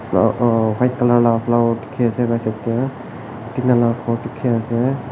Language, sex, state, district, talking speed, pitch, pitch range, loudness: Nagamese, male, Nagaland, Kohima, 150 wpm, 120 Hz, 115-125 Hz, -18 LUFS